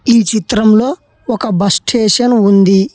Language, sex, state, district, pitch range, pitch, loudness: Telugu, male, Telangana, Hyderabad, 200-240 Hz, 220 Hz, -11 LUFS